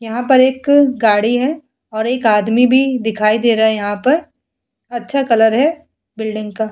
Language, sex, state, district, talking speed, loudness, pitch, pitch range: Hindi, female, Bihar, Vaishali, 185 wpm, -14 LUFS, 235 Hz, 220-265 Hz